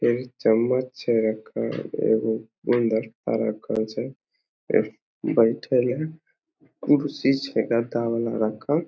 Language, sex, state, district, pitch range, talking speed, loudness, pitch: Maithili, male, Bihar, Samastipur, 110-135 Hz, 95 wpm, -24 LUFS, 120 Hz